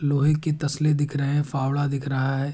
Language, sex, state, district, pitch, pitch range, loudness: Hindi, male, Uttar Pradesh, Hamirpur, 145 Hz, 140-150 Hz, -24 LUFS